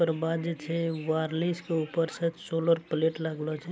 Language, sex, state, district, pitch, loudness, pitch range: Angika, male, Bihar, Araria, 165 Hz, -30 LUFS, 160-170 Hz